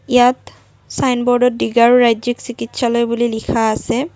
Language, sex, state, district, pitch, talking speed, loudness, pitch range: Assamese, female, Assam, Kamrup Metropolitan, 240 Hz, 130 wpm, -15 LUFS, 235-250 Hz